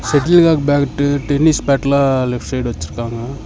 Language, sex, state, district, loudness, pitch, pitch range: Tamil, male, Tamil Nadu, Namakkal, -15 LUFS, 140 Hz, 125-145 Hz